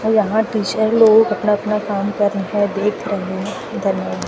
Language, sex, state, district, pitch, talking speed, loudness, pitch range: Hindi, female, Chhattisgarh, Raipur, 205 Hz, 155 wpm, -17 LUFS, 200-215 Hz